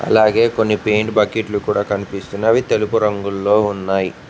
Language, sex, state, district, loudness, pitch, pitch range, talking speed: Telugu, male, Telangana, Mahabubabad, -17 LUFS, 105 Hz, 100-110 Hz, 125 wpm